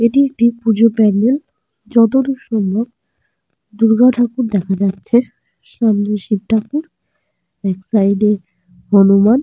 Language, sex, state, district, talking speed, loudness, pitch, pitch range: Bengali, female, Jharkhand, Sahebganj, 110 wpm, -15 LUFS, 220 Hz, 200-240 Hz